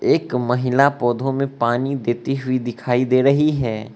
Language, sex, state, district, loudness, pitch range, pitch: Hindi, male, Arunachal Pradesh, Lower Dibang Valley, -19 LUFS, 120-135 Hz, 130 Hz